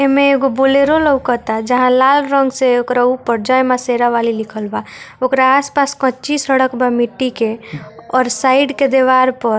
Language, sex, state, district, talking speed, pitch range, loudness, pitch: Bhojpuri, female, Bihar, Muzaffarpur, 175 wpm, 240-270 Hz, -14 LUFS, 255 Hz